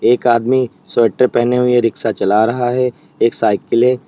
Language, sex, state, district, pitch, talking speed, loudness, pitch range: Hindi, male, Uttar Pradesh, Lalitpur, 120 Hz, 175 wpm, -15 LUFS, 115-125 Hz